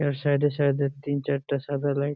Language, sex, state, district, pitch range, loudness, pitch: Bengali, male, West Bengal, Malda, 140-145 Hz, -26 LUFS, 140 Hz